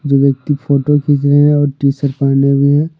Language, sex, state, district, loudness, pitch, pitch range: Hindi, male, Jharkhand, Deoghar, -13 LUFS, 140 Hz, 140-145 Hz